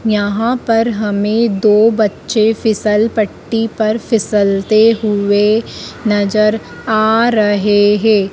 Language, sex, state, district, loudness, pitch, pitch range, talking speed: Hindi, female, Madhya Pradesh, Dhar, -13 LUFS, 215 Hz, 205-225 Hz, 95 wpm